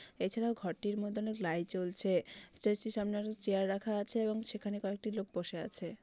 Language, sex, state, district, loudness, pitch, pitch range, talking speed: Bengali, female, West Bengal, Malda, -37 LUFS, 205 Hz, 195-215 Hz, 190 wpm